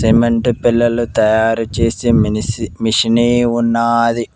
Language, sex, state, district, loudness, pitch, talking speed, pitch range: Telugu, male, Telangana, Mahabubabad, -14 LUFS, 115 Hz, 95 wpm, 115-120 Hz